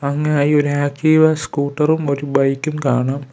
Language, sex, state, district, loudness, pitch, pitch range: Malayalam, male, Kerala, Kollam, -17 LUFS, 145 Hz, 140-150 Hz